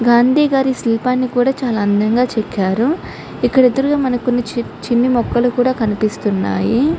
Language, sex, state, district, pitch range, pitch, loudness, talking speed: Telugu, female, Andhra Pradesh, Chittoor, 225-255 Hz, 245 Hz, -16 LUFS, 135 wpm